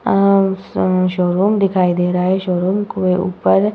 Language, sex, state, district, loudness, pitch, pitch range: Hindi, female, Uttar Pradesh, Budaun, -16 LUFS, 185 Hz, 180-195 Hz